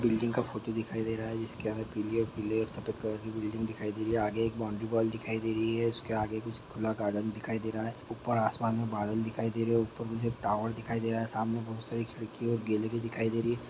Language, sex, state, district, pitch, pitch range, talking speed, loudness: Maithili, male, Bihar, Araria, 110 Hz, 110-115 Hz, 280 wpm, -33 LUFS